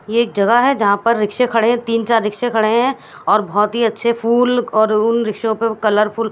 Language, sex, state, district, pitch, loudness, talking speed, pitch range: Hindi, female, Haryana, Charkhi Dadri, 230 Hz, -16 LUFS, 230 wpm, 215-235 Hz